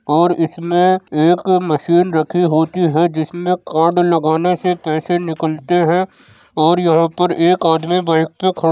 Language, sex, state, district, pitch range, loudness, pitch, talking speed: Hindi, male, Uttar Pradesh, Jyotiba Phule Nagar, 160-180 Hz, -15 LUFS, 170 Hz, 150 wpm